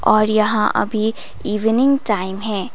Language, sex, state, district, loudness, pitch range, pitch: Hindi, female, Sikkim, Gangtok, -17 LUFS, 210-225 Hz, 215 Hz